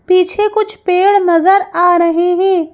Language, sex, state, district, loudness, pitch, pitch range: Hindi, female, Madhya Pradesh, Bhopal, -12 LUFS, 365 Hz, 350-395 Hz